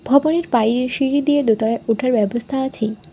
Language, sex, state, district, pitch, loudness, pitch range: Bengali, female, West Bengal, Alipurduar, 245 Hz, -18 LUFS, 225-275 Hz